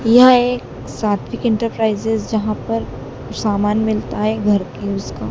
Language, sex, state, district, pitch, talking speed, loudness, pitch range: Hindi, female, Madhya Pradesh, Dhar, 215 Hz, 135 wpm, -18 LUFS, 195-225 Hz